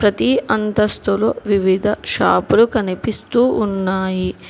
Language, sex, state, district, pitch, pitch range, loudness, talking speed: Telugu, female, Telangana, Hyderabad, 210 Hz, 190-220 Hz, -17 LUFS, 95 wpm